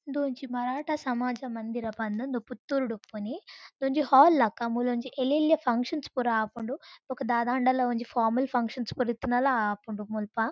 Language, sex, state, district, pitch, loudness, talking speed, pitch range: Tulu, female, Karnataka, Dakshina Kannada, 250 Hz, -28 LUFS, 155 wpm, 230-270 Hz